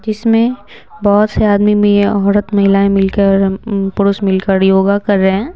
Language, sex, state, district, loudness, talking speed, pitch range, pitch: Hindi, female, Bihar, Patna, -12 LUFS, 150 wpm, 195-210 Hz, 200 Hz